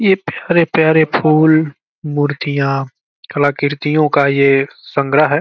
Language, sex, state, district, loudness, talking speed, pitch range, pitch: Hindi, male, Bihar, Gopalganj, -14 LUFS, 100 wpm, 140-155 Hz, 145 Hz